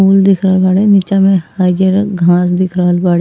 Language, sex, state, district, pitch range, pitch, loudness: Bhojpuri, female, Uttar Pradesh, Ghazipur, 180-195 Hz, 185 Hz, -11 LUFS